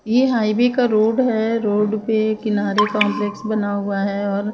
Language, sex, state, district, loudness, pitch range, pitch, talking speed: Hindi, female, Chandigarh, Chandigarh, -19 LUFS, 205-225 Hz, 215 Hz, 185 wpm